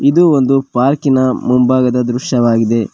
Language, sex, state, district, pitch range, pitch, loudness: Kannada, male, Karnataka, Koppal, 125-135 Hz, 130 Hz, -13 LUFS